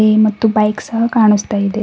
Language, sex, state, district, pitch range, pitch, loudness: Kannada, female, Karnataka, Bidar, 210-220 Hz, 215 Hz, -14 LUFS